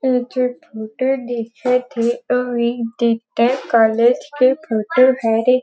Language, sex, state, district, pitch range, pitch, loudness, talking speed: Chhattisgarhi, female, Chhattisgarh, Rajnandgaon, 230-255 Hz, 245 Hz, -17 LUFS, 130 wpm